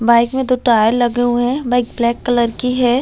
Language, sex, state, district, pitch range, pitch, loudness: Hindi, female, Chhattisgarh, Raigarh, 235-250 Hz, 245 Hz, -15 LUFS